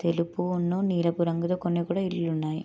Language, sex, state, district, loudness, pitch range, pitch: Telugu, female, Andhra Pradesh, Srikakulam, -27 LUFS, 170-180 Hz, 170 Hz